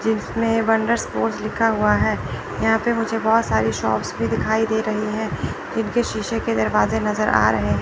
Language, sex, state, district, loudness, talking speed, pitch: Hindi, male, Chandigarh, Chandigarh, -21 LUFS, 170 wpm, 220 Hz